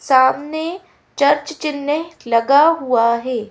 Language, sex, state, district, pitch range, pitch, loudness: Hindi, female, Madhya Pradesh, Bhopal, 255-315 Hz, 285 Hz, -17 LUFS